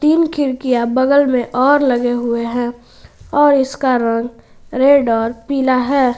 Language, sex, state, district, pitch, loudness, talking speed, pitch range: Hindi, female, Jharkhand, Garhwa, 255 Hz, -15 LUFS, 145 wpm, 240-280 Hz